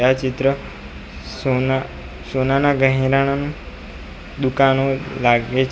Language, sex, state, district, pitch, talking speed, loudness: Gujarati, male, Gujarat, Valsad, 130 Hz, 85 wpm, -19 LUFS